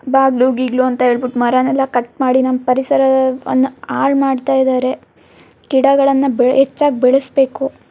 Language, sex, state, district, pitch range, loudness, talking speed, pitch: Kannada, female, Karnataka, Mysore, 255-270 Hz, -14 LUFS, 115 wpm, 265 Hz